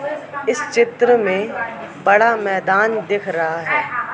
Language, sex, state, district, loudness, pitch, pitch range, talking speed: Hindi, male, Madhya Pradesh, Katni, -17 LUFS, 230 Hz, 195-280 Hz, 115 wpm